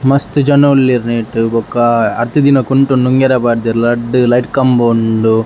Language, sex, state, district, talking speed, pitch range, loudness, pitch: Tulu, male, Karnataka, Dakshina Kannada, 145 wpm, 115-135 Hz, -12 LUFS, 120 Hz